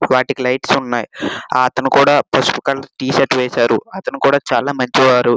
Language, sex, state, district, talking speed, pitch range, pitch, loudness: Telugu, male, Andhra Pradesh, Srikakulam, 165 wpm, 125-135 Hz, 130 Hz, -15 LUFS